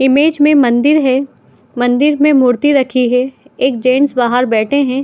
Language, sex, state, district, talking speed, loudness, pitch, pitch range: Hindi, female, Chhattisgarh, Bilaspur, 180 wpm, -12 LUFS, 265 Hz, 250-285 Hz